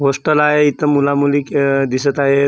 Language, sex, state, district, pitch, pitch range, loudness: Marathi, male, Maharashtra, Gondia, 140 Hz, 140-150 Hz, -15 LUFS